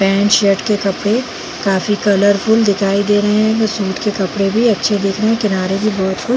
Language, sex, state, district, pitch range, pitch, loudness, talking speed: Hindi, female, Chhattisgarh, Bilaspur, 195-220 Hz, 205 Hz, -15 LUFS, 205 wpm